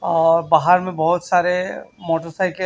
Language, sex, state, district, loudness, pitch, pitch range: Hindi, male, Chhattisgarh, Raipur, -18 LUFS, 175 Hz, 165-180 Hz